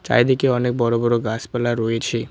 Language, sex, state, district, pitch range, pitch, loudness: Bengali, male, West Bengal, Cooch Behar, 115-125 Hz, 120 Hz, -20 LUFS